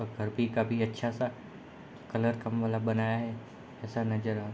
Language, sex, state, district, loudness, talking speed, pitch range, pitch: Hindi, male, Bihar, Sitamarhi, -32 LUFS, 185 wpm, 110-115 Hz, 115 Hz